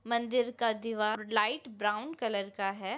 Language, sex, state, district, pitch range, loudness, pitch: Hindi, female, Maharashtra, Pune, 210-235 Hz, -32 LUFS, 220 Hz